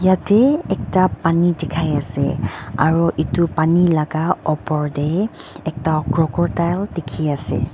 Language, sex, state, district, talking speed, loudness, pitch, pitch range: Nagamese, female, Nagaland, Dimapur, 115 wpm, -19 LUFS, 160 Hz, 150-170 Hz